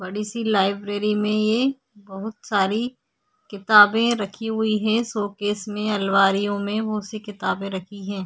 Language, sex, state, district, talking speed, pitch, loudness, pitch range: Hindi, female, Maharashtra, Chandrapur, 145 wpm, 210 Hz, -22 LUFS, 200-220 Hz